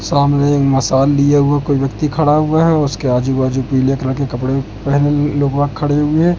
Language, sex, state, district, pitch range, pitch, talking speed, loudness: Hindi, male, Madhya Pradesh, Katni, 135-145 Hz, 140 Hz, 215 wpm, -14 LUFS